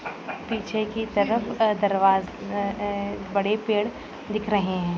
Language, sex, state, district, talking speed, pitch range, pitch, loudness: Hindi, female, Maharashtra, Solapur, 145 wpm, 200-215 Hz, 205 Hz, -25 LUFS